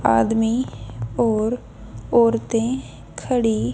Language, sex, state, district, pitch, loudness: Hindi, female, Haryana, Jhajjar, 225 Hz, -21 LUFS